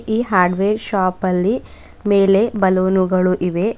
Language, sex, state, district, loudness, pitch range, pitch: Kannada, female, Karnataka, Bidar, -17 LUFS, 185-210 Hz, 190 Hz